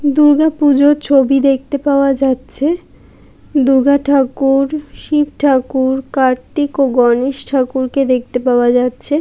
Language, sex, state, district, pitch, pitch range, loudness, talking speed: Bengali, female, West Bengal, Jalpaiguri, 275 Hz, 260-290 Hz, -13 LUFS, 110 wpm